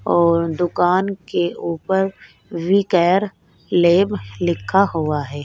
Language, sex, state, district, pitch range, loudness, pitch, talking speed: Hindi, female, Rajasthan, Nagaur, 170-190 Hz, -18 LUFS, 175 Hz, 110 wpm